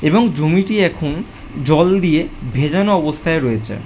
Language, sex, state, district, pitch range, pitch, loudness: Bengali, male, West Bengal, Jhargram, 150-190 Hz, 160 Hz, -16 LUFS